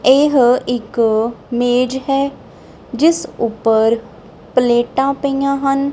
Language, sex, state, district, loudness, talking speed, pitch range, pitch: Punjabi, female, Punjab, Kapurthala, -16 LUFS, 90 wpm, 235-275 Hz, 255 Hz